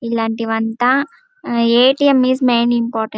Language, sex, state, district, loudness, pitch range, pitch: Telugu, female, Andhra Pradesh, Chittoor, -15 LUFS, 230-260 Hz, 240 Hz